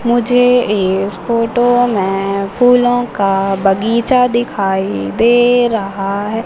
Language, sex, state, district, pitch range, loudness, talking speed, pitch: Hindi, female, Madhya Pradesh, Umaria, 195-245 Hz, -13 LUFS, 100 wpm, 225 Hz